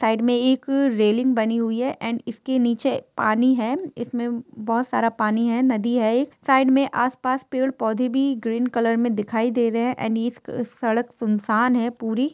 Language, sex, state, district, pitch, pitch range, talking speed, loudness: Hindi, female, Jharkhand, Sahebganj, 240 Hz, 230-255 Hz, 185 wpm, -22 LUFS